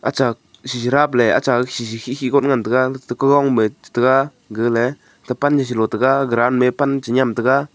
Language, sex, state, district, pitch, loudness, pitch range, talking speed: Wancho, male, Arunachal Pradesh, Longding, 130 Hz, -17 LUFS, 120-135 Hz, 155 wpm